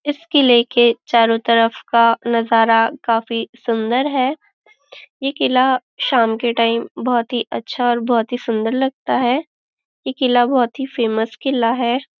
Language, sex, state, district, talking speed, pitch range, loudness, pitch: Hindi, female, Maharashtra, Nagpur, 150 wpm, 230-265 Hz, -17 LUFS, 240 Hz